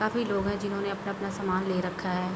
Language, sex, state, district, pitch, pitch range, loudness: Hindi, female, Bihar, Gopalganj, 195 Hz, 185-200 Hz, -30 LUFS